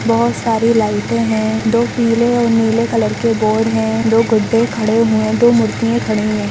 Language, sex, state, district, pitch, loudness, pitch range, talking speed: Hindi, female, Chhattisgarh, Raigarh, 225 Hz, -14 LUFS, 215-230 Hz, 185 wpm